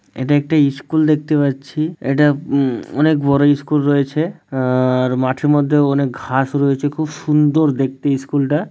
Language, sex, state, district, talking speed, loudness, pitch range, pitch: Bengali, male, West Bengal, Malda, 150 wpm, -16 LUFS, 135-150 Hz, 145 Hz